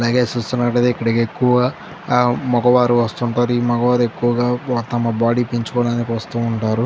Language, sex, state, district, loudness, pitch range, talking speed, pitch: Telugu, male, Andhra Pradesh, Chittoor, -18 LUFS, 120-125 Hz, 140 wpm, 120 Hz